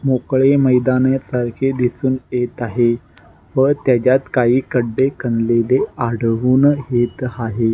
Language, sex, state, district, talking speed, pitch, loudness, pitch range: Marathi, male, Maharashtra, Nagpur, 100 wpm, 125 Hz, -17 LUFS, 120-130 Hz